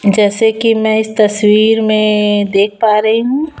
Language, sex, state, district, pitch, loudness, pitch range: Hindi, female, Chhattisgarh, Raipur, 215 Hz, -12 LUFS, 210-220 Hz